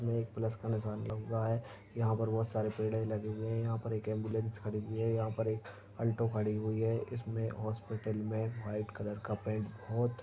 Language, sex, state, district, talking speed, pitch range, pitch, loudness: Hindi, male, Chhattisgarh, Raigarh, 210 wpm, 110-115 Hz, 110 Hz, -37 LUFS